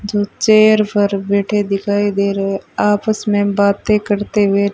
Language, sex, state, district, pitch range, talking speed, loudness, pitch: Hindi, female, Rajasthan, Bikaner, 200-210 Hz, 150 wpm, -15 LUFS, 205 Hz